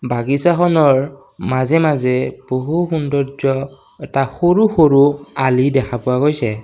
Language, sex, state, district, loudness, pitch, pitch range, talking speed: Assamese, male, Assam, Kamrup Metropolitan, -16 LUFS, 140 Hz, 130-155 Hz, 110 wpm